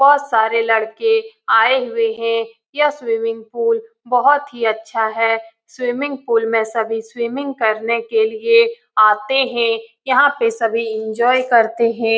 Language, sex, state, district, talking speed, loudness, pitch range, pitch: Hindi, female, Bihar, Saran, 145 wpm, -17 LUFS, 225-265 Hz, 230 Hz